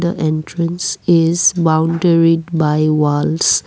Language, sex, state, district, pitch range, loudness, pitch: English, female, Assam, Kamrup Metropolitan, 155-170 Hz, -15 LUFS, 165 Hz